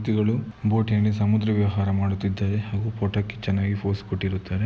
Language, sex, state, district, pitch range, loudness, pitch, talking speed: Kannada, male, Karnataka, Mysore, 100-110 Hz, -24 LUFS, 100 Hz, 130 wpm